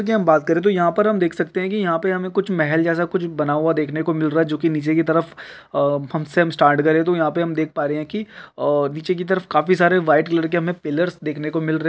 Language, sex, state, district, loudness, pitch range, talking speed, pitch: Hindi, male, Chhattisgarh, Kabirdham, -19 LUFS, 155-180 Hz, 295 wpm, 165 Hz